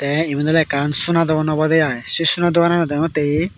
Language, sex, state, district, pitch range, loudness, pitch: Chakma, male, Tripura, Dhalai, 150-165 Hz, -16 LUFS, 155 Hz